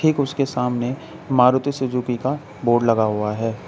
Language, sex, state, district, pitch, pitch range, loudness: Hindi, male, Uttar Pradesh, Saharanpur, 125 Hz, 120-140 Hz, -20 LUFS